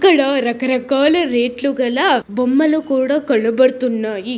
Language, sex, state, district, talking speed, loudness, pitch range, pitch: Telugu, male, Telangana, Nalgonda, 110 wpm, -16 LUFS, 245-280 Hz, 260 Hz